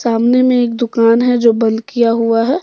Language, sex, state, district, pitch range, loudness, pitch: Hindi, female, Jharkhand, Deoghar, 230-245 Hz, -13 LUFS, 235 Hz